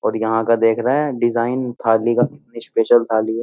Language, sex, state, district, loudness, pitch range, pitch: Hindi, male, Uttar Pradesh, Jyotiba Phule Nagar, -18 LUFS, 115-120 Hz, 115 Hz